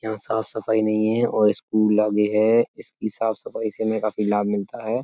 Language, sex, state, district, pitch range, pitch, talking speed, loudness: Hindi, male, Uttar Pradesh, Etah, 105-110 Hz, 110 Hz, 215 wpm, -22 LUFS